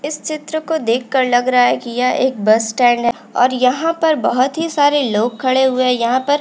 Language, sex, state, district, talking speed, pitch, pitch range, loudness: Hindi, female, Uttarakhand, Uttarkashi, 255 wpm, 255 Hz, 245-290 Hz, -16 LUFS